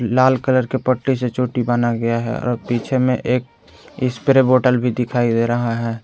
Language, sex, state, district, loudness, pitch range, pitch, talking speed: Hindi, male, Jharkhand, Garhwa, -18 LUFS, 115-130 Hz, 125 Hz, 190 wpm